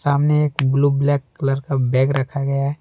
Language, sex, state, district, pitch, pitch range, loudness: Hindi, male, Jharkhand, Deoghar, 140 Hz, 135-145 Hz, -19 LUFS